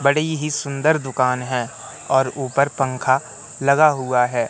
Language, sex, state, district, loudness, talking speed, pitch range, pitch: Hindi, male, Madhya Pradesh, Katni, -19 LUFS, 145 wpm, 130-145 Hz, 135 Hz